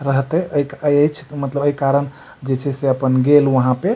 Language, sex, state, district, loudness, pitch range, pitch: Maithili, male, Bihar, Supaul, -17 LUFS, 135-145 Hz, 140 Hz